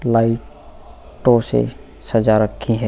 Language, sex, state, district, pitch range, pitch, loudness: Hindi, male, Goa, North and South Goa, 110-115 Hz, 115 Hz, -18 LUFS